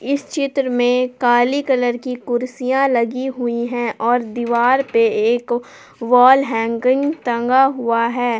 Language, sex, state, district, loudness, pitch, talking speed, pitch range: Hindi, female, Jharkhand, Palamu, -17 LUFS, 245 Hz, 135 wpm, 235-260 Hz